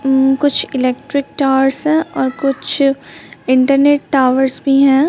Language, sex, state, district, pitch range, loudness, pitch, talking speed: Hindi, female, Bihar, Kaimur, 265-285 Hz, -14 LUFS, 275 Hz, 130 wpm